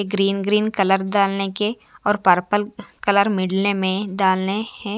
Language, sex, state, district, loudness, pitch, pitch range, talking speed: Hindi, female, Chhattisgarh, Raipur, -20 LUFS, 200 Hz, 195-205 Hz, 145 wpm